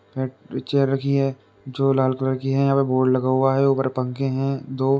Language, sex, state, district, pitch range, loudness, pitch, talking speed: Hindi, male, Uttar Pradesh, Jalaun, 130-135 Hz, -21 LUFS, 135 Hz, 215 wpm